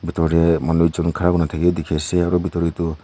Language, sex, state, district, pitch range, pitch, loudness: Nagamese, male, Nagaland, Kohima, 80-85 Hz, 85 Hz, -19 LUFS